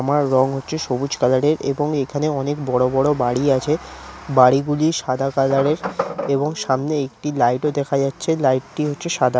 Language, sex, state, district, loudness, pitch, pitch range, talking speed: Bengali, male, West Bengal, Kolkata, -19 LUFS, 140 Hz, 130-150 Hz, 165 wpm